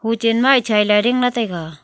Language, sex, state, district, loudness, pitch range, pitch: Wancho, female, Arunachal Pradesh, Longding, -16 LUFS, 210-240 Hz, 230 Hz